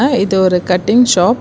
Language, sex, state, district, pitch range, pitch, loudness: Tamil, female, Karnataka, Bangalore, 180-240 Hz, 195 Hz, -12 LUFS